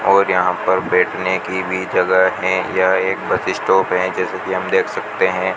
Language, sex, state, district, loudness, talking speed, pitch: Hindi, male, Rajasthan, Bikaner, -17 LUFS, 205 wpm, 95 Hz